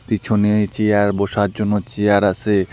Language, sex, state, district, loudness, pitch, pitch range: Bengali, male, West Bengal, Alipurduar, -17 LUFS, 105 Hz, 100-105 Hz